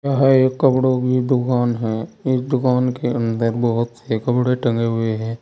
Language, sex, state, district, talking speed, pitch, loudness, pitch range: Hindi, male, Uttar Pradesh, Saharanpur, 175 wpm, 125 Hz, -19 LUFS, 115-130 Hz